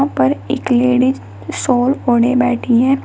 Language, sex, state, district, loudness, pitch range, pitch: Hindi, female, Uttar Pradesh, Shamli, -15 LUFS, 245-260 Hz, 250 Hz